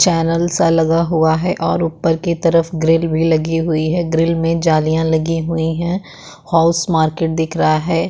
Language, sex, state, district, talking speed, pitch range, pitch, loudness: Hindi, female, Uttarakhand, Tehri Garhwal, 185 wpm, 160-165 Hz, 165 Hz, -16 LUFS